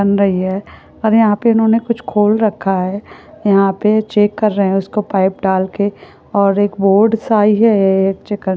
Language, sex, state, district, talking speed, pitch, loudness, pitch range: Hindi, female, West Bengal, Purulia, 205 wpm, 205 Hz, -14 LUFS, 195-215 Hz